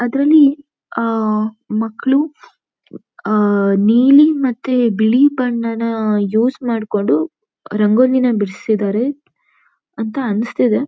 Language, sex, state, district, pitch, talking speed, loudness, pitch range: Kannada, female, Karnataka, Shimoga, 230 Hz, 85 wpm, -15 LUFS, 215-270 Hz